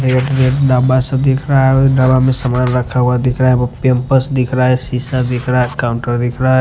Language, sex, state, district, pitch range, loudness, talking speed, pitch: Hindi, male, Maharashtra, Washim, 125-130 Hz, -14 LUFS, 235 wpm, 130 Hz